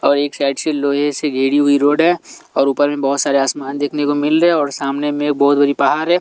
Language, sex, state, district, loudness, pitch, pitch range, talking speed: Hindi, male, Delhi, New Delhi, -16 LUFS, 145 Hz, 140-145 Hz, 280 wpm